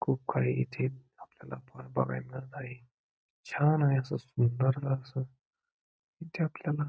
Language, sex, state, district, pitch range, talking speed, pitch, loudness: Marathi, male, Maharashtra, Pune, 120-145 Hz, 120 wpm, 130 Hz, -32 LUFS